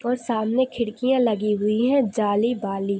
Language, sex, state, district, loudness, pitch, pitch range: Hindi, female, Chhattisgarh, Jashpur, -22 LUFS, 225 Hz, 210-245 Hz